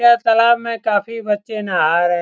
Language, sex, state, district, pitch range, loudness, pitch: Hindi, male, Bihar, Saran, 205-230 Hz, -16 LUFS, 225 Hz